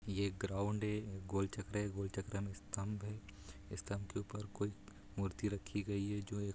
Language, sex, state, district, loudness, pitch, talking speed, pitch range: Hindi, male, Bihar, Saran, -42 LUFS, 100 Hz, 200 wpm, 100-105 Hz